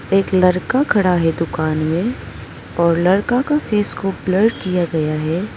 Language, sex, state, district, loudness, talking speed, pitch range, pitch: Hindi, female, Arunachal Pradesh, Papum Pare, -17 LUFS, 160 wpm, 165-210 Hz, 185 Hz